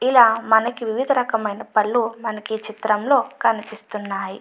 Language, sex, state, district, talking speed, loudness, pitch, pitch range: Telugu, female, Andhra Pradesh, Chittoor, 150 wpm, -20 LUFS, 220 Hz, 215-240 Hz